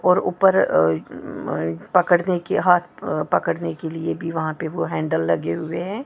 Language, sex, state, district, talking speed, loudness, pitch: Hindi, male, Maharashtra, Mumbai Suburban, 190 wpm, -21 LUFS, 160 Hz